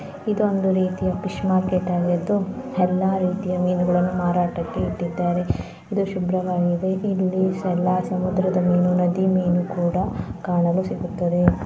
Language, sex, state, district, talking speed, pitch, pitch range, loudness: Kannada, female, Karnataka, Dharwad, 195 wpm, 185 Hz, 180-190 Hz, -22 LUFS